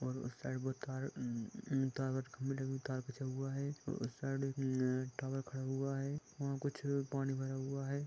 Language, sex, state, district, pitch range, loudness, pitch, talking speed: Hindi, male, Jharkhand, Sahebganj, 130-140 Hz, -41 LUFS, 135 Hz, 195 wpm